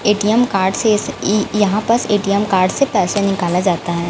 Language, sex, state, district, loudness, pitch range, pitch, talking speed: Hindi, female, Chhattisgarh, Raipur, -16 LUFS, 190-215 Hz, 205 Hz, 205 wpm